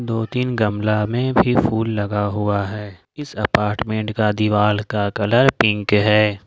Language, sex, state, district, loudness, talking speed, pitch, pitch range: Hindi, male, Jharkhand, Ranchi, -19 LUFS, 160 wpm, 105 Hz, 105-110 Hz